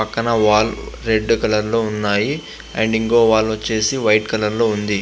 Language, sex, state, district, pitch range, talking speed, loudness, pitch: Telugu, male, Andhra Pradesh, Visakhapatnam, 105-115 Hz, 165 wpm, -17 LUFS, 110 Hz